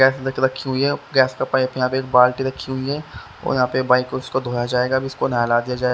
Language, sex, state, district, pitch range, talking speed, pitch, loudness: Hindi, male, Haryana, Rohtak, 125-130 Hz, 275 wpm, 130 Hz, -20 LUFS